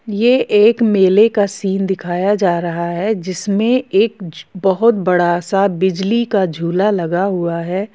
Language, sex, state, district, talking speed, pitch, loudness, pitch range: Hindi, female, Jharkhand, Sahebganj, 150 wpm, 195 Hz, -15 LUFS, 180-210 Hz